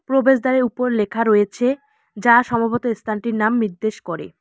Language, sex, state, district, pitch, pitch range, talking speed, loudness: Bengali, male, West Bengal, Alipurduar, 235 Hz, 215-250 Hz, 135 wpm, -18 LUFS